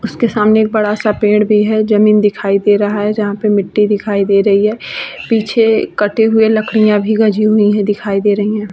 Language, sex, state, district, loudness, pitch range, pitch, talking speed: Hindi, female, Bihar, Vaishali, -12 LUFS, 205-220 Hz, 210 Hz, 240 wpm